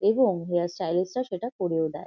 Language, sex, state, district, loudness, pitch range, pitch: Bengali, female, West Bengal, Kolkata, -27 LUFS, 170-215 Hz, 180 Hz